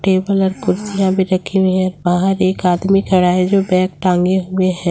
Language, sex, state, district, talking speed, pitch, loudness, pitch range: Hindi, female, Jharkhand, Ranchi, 210 wpm, 185 Hz, -15 LUFS, 180-190 Hz